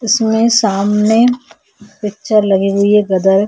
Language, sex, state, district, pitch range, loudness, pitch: Hindi, female, Chhattisgarh, Korba, 200-220 Hz, -12 LUFS, 210 Hz